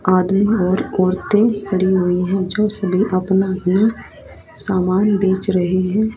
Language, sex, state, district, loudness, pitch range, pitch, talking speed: Hindi, female, Haryana, Rohtak, -17 LUFS, 185-205 Hz, 190 Hz, 135 wpm